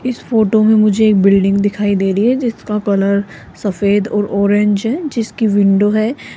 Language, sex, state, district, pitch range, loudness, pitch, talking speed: Hindi, female, Rajasthan, Jaipur, 200-220 Hz, -14 LUFS, 205 Hz, 180 wpm